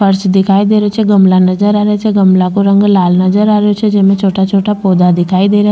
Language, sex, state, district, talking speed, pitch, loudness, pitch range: Rajasthani, female, Rajasthan, Churu, 270 wpm, 200 Hz, -10 LUFS, 190-210 Hz